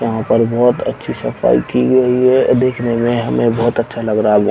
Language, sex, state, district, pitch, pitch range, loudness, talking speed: Hindi, male, Chhattisgarh, Bilaspur, 115 Hz, 110-125 Hz, -14 LUFS, 225 wpm